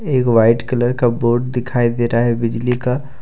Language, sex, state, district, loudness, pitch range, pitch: Hindi, male, Jharkhand, Deoghar, -16 LUFS, 120-125 Hz, 120 Hz